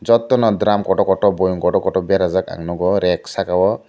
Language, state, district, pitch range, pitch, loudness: Kokborok, Tripura, Dhalai, 90-110 Hz, 100 Hz, -17 LUFS